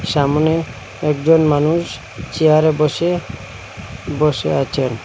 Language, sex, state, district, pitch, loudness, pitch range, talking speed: Bengali, male, Assam, Hailakandi, 150 Hz, -16 LUFS, 125-155 Hz, 95 wpm